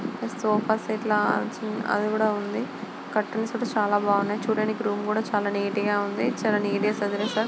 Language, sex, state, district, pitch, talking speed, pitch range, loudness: Telugu, female, Andhra Pradesh, Guntur, 215 Hz, 170 wpm, 205-220 Hz, -26 LUFS